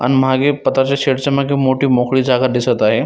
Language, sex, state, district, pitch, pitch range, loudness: Marathi, male, Maharashtra, Dhule, 135 Hz, 130-140 Hz, -15 LUFS